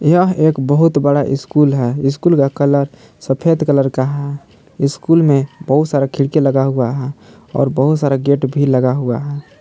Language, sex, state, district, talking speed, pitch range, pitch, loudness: Hindi, male, Jharkhand, Palamu, 180 wpm, 135-150 Hz, 140 Hz, -15 LUFS